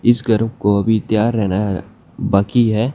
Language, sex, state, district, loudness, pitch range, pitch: Hindi, male, Haryana, Jhajjar, -17 LUFS, 100-115 Hz, 110 Hz